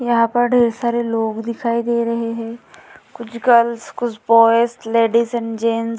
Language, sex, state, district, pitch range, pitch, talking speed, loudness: Hindi, female, Bihar, Vaishali, 230-235 Hz, 235 Hz, 170 wpm, -17 LUFS